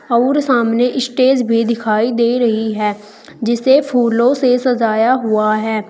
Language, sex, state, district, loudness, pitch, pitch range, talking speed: Hindi, female, Uttar Pradesh, Saharanpur, -14 LUFS, 235 Hz, 220-255 Hz, 140 wpm